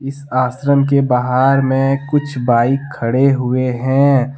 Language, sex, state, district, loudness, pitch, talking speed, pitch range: Hindi, male, Jharkhand, Deoghar, -15 LUFS, 135 Hz, 135 wpm, 125-140 Hz